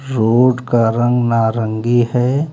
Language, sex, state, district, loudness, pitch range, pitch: Hindi, male, Uttar Pradesh, Lucknow, -15 LUFS, 115-125 Hz, 120 Hz